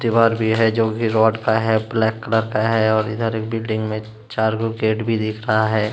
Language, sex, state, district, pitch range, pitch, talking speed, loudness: Hindi, male, Uttar Pradesh, Jalaun, 110-115 Hz, 110 Hz, 240 wpm, -19 LUFS